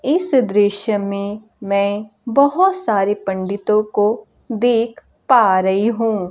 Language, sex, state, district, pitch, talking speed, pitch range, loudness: Hindi, female, Bihar, Kaimur, 210 Hz, 115 wpm, 200-235 Hz, -17 LUFS